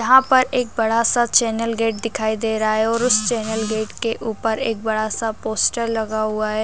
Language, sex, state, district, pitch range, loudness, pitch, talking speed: Hindi, female, Bihar, Darbhanga, 220-230 Hz, -19 LUFS, 225 Hz, 215 wpm